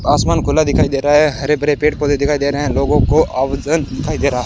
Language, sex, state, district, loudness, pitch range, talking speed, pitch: Hindi, male, Rajasthan, Bikaner, -15 LUFS, 135-150 Hz, 255 wpm, 145 Hz